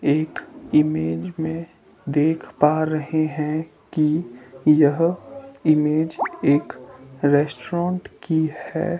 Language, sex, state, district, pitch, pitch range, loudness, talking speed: Hindi, male, Himachal Pradesh, Shimla, 155 Hz, 145-165 Hz, -21 LUFS, 95 wpm